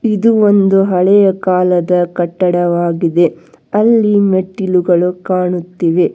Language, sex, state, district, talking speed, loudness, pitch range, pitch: Kannada, female, Karnataka, Bangalore, 80 wpm, -12 LUFS, 175-200 Hz, 180 Hz